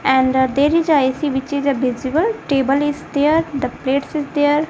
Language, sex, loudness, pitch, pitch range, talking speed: English, female, -18 LUFS, 285 Hz, 265-300 Hz, 205 wpm